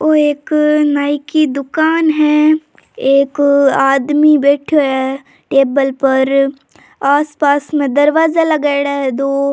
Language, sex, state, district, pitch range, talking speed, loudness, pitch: Rajasthani, female, Rajasthan, Churu, 275-305 Hz, 120 wpm, -13 LUFS, 285 Hz